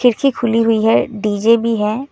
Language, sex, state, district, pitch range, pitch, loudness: Hindi, female, West Bengal, Alipurduar, 220-240 Hz, 230 Hz, -15 LUFS